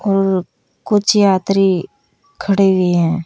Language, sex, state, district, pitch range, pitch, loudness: Hindi, female, Uttar Pradesh, Saharanpur, 180-205 Hz, 195 Hz, -15 LUFS